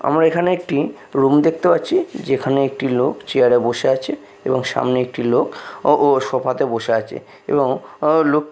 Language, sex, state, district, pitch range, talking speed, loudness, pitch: Bengali, male, Bihar, Katihar, 130-160 Hz, 185 wpm, -18 LUFS, 140 Hz